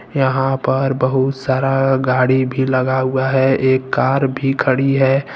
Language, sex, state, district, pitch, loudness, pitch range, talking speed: Hindi, male, Jharkhand, Ranchi, 130 Hz, -16 LUFS, 130-135 Hz, 155 wpm